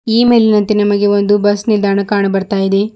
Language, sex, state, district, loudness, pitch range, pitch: Kannada, female, Karnataka, Bidar, -12 LUFS, 200-215 Hz, 205 Hz